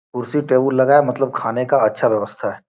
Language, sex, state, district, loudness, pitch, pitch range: Hindi, male, Bihar, Gopalganj, -17 LUFS, 130 Hz, 125-140 Hz